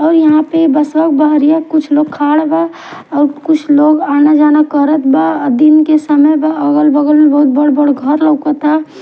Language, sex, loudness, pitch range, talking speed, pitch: Bhojpuri, female, -10 LUFS, 290-310 Hz, 180 wpm, 300 Hz